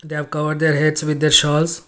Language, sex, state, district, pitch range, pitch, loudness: English, male, Karnataka, Bangalore, 150-155 Hz, 155 Hz, -17 LUFS